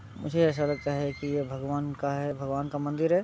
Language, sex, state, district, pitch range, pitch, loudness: Hindi, male, Bihar, Muzaffarpur, 140-145 Hz, 145 Hz, -30 LUFS